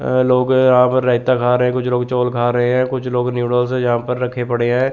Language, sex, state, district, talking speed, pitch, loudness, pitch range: Hindi, male, Chandigarh, Chandigarh, 280 wpm, 125 Hz, -16 LUFS, 125-130 Hz